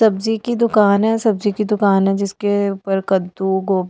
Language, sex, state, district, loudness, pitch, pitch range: Hindi, female, Delhi, New Delhi, -17 LUFS, 200 Hz, 195-215 Hz